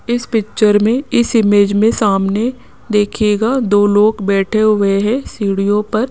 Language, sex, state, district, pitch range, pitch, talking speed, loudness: Hindi, female, Rajasthan, Jaipur, 205-230 Hz, 210 Hz, 145 wpm, -14 LUFS